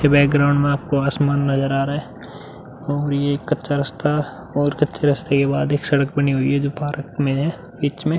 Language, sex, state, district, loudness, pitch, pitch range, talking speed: Hindi, male, Uttar Pradesh, Muzaffarnagar, -20 LUFS, 145 Hz, 140-145 Hz, 210 wpm